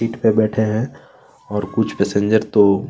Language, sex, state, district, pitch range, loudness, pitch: Hindi, male, Chhattisgarh, Kabirdham, 105-110 Hz, -18 LUFS, 110 Hz